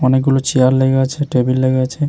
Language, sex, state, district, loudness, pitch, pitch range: Bengali, male, West Bengal, Jalpaiguri, -15 LUFS, 130 Hz, 130-135 Hz